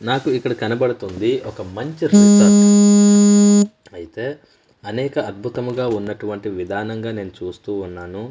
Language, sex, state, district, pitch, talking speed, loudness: Telugu, male, Andhra Pradesh, Manyam, 125 Hz, 100 wpm, -16 LUFS